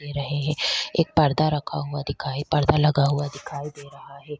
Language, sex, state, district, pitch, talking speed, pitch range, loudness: Hindi, female, Chhattisgarh, Kabirdham, 145 Hz, 205 wpm, 140-150 Hz, -23 LUFS